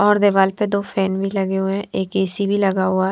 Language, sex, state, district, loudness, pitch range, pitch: Hindi, female, Punjab, Fazilka, -19 LUFS, 190-200 Hz, 195 Hz